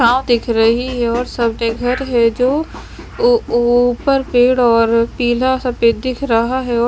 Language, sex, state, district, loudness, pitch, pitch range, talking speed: Hindi, female, Chandigarh, Chandigarh, -15 LUFS, 245 Hz, 235-255 Hz, 155 wpm